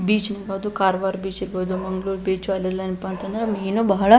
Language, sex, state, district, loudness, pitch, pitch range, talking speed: Kannada, female, Karnataka, Belgaum, -23 LUFS, 195 Hz, 190-200 Hz, 170 wpm